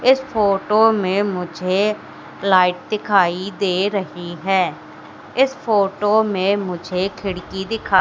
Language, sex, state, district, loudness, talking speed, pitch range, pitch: Hindi, female, Madhya Pradesh, Katni, -19 LUFS, 120 wpm, 185-210 Hz, 195 Hz